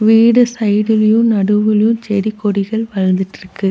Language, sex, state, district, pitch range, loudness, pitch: Tamil, female, Tamil Nadu, Nilgiris, 200-225 Hz, -14 LUFS, 215 Hz